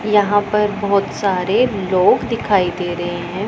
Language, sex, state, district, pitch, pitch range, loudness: Hindi, female, Punjab, Pathankot, 200 Hz, 185-210 Hz, -17 LUFS